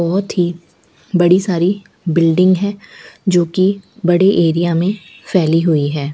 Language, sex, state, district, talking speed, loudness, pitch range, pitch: Hindi, female, Rajasthan, Bikaner, 125 wpm, -15 LUFS, 170-190 Hz, 180 Hz